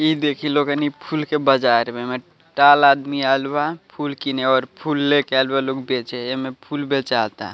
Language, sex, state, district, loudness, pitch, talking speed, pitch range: Bhojpuri, male, Bihar, Muzaffarpur, -19 LUFS, 140 Hz, 200 wpm, 130-145 Hz